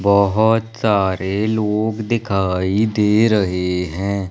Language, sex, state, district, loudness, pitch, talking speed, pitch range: Hindi, male, Madhya Pradesh, Umaria, -18 LUFS, 105 Hz, 100 wpm, 95-110 Hz